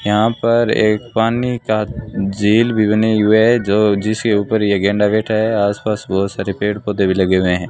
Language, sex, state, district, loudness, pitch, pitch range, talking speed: Hindi, male, Rajasthan, Bikaner, -16 LUFS, 105 Hz, 100-110 Hz, 195 wpm